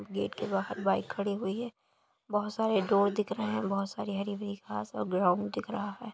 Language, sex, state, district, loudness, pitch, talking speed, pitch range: Hindi, male, Uttar Pradesh, Jalaun, -32 LUFS, 200 Hz, 225 wpm, 195-210 Hz